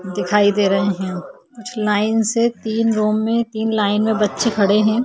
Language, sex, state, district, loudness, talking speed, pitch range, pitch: Hindi, female, Chhattisgarh, Korba, -18 LUFS, 190 wpm, 205-225 Hz, 215 Hz